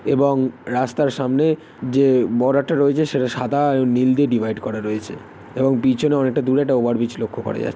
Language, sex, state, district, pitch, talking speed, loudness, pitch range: Bengali, male, West Bengal, North 24 Parganas, 130 Hz, 185 wpm, -19 LUFS, 125-140 Hz